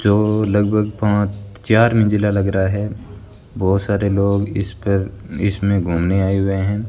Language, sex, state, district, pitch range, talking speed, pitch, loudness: Hindi, male, Rajasthan, Bikaner, 100-105 Hz, 155 wpm, 100 Hz, -18 LUFS